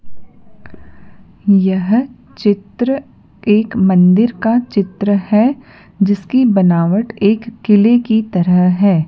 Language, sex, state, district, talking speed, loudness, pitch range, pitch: Hindi, female, Madhya Pradesh, Dhar, 95 wpm, -14 LUFS, 190-230 Hz, 205 Hz